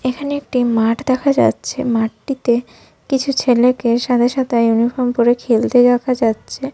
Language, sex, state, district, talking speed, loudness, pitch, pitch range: Bengali, female, Jharkhand, Sahebganj, 135 wpm, -16 LUFS, 245 Hz, 235-260 Hz